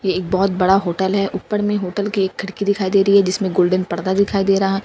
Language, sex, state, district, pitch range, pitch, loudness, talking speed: Hindi, female, Delhi, New Delhi, 185-200 Hz, 195 Hz, -18 LUFS, 285 wpm